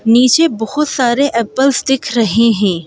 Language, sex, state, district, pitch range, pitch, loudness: Hindi, female, Madhya Pradesh, Bhopal, 225-270 Hz, 240 Hz, -13 LUFS